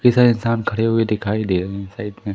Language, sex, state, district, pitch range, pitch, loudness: Hindi, male, Madhya Pradesh, Umaria, 100-115 Hz, 110 Hz, -19 LUFS